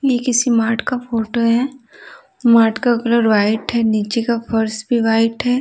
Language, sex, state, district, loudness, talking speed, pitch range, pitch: Hindi, female, Bihar, Patna, -16 LUFS, 180 wpm, 225-250 Hz, 235 Hz